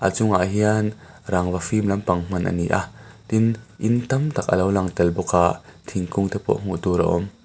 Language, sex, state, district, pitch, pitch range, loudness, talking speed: Mizo, male, Mizoram, Aizawl, 100 Hz, 90-110 Hz, -22 LUFS, 200 wpm